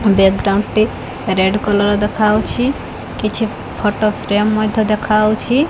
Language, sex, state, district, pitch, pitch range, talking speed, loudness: Odia, female, Odisha, Khordha, 215 Hz, 205-215 Hz, 105 wpm, -16 LUFS